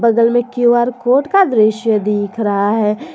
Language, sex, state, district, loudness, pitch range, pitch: Hindi, female, Jharkhand, Garhwa, -14 LUFS, 210-245 Hz, 230 Hz